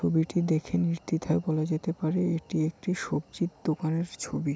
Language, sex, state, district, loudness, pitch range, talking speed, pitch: Bengali, male, West Bengal, Malda, -29 LUFS, 155-175 Hz, 145 wpm, 160 Hz